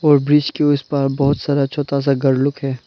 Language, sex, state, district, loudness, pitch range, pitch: Hindi, male, Arunachal Pradesh, Lower Dibang Valley, -17 LUFS, 140-145 Hz, 140 Hz